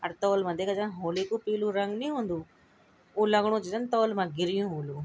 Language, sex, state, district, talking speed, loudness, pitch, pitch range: Garhwali, female, Uttarakhand, Tehri Garhwal, 225 wpm, -29 LUFS, 200 Hz, 175-215 Hz